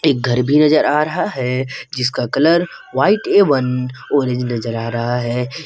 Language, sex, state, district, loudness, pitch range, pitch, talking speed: Hindi, male, Jharkhand, Garhwa, -17 LUFS, 125-150 Hz, 130 Hz, 160 wpm